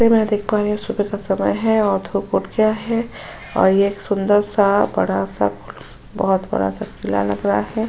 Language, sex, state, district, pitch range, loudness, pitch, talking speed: Hindi, female, Uttar Pradesh, Jyotiba Phule Nagar, 195-215 Hz, -19 LUFS, 205 Hz, 200 wpm